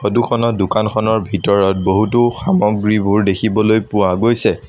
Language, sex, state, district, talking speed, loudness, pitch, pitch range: Assamese, male, Assam, Sonitpur, 115 wpm, -15 LUFS, 110 Hz, 100-115 Hz